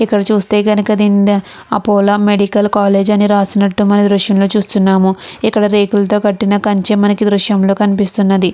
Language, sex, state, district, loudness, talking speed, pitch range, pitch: Telugu, female, Andhra Pradesh, Chittoor, -12 LUFS, 160 wpm, 200-210 Hz, 205 Hz